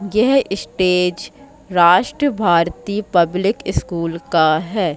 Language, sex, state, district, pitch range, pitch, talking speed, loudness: Hindi, female, Madhya Pradesh, Katni, 170-210 Hz, 180 Hz, 95 wpm, -17 LUFS